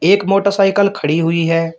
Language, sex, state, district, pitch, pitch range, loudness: Hindi, male, Uttar Pradesh, Shamli, 190 Hz, 165-200 Hz, -14 LUFS